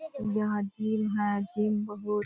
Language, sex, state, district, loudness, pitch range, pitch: Hindi, female, Bihar, Purnia, -30 LUFS, 205-215 Hz, 210 Hz